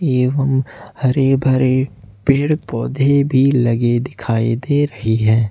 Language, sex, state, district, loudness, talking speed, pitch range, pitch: Hindi, male, Jharkhand, Ranchi, -16 LUFS, 130 wpm, 115-140 Hz, 130 Hz